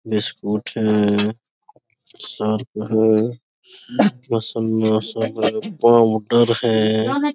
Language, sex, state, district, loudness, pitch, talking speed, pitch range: Hindi, male, Jharkhand, Sahebganj, -19 LUFS, 110 Hz, 55 wpm, 110-120 Hz